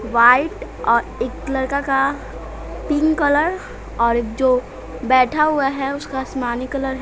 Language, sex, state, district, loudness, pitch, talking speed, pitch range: Hindi, female, Bihar, West Champaran, -19 LUFS, 265 Hz, 135 wpm, 245-285 Hz